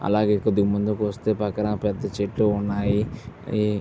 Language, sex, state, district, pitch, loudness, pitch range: Telugu, male, Andhra Pradesh, Visakhapatnam, 105 Hz, -24 LUFS, 100-105 Hz